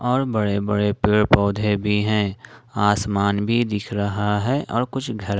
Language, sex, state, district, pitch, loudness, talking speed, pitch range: Hindi, male, Jharkhand, Ranchi, 105 Hz, -21 LUFS, 155 wpm, 100-115 Hz